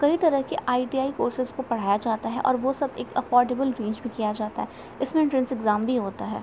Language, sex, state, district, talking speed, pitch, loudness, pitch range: Hindi, female, Uttar Pradesh, Gorakhpur, 225 wpm, 255 Hz, -25 LUFS, 225-270 Hz